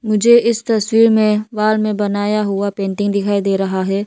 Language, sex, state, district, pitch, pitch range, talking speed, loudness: Hindi, female, Arunachal Pradesh, Lower Dibang Valley, 210 Hz, 200-220 Hz, 190 wpm, -15 LUFS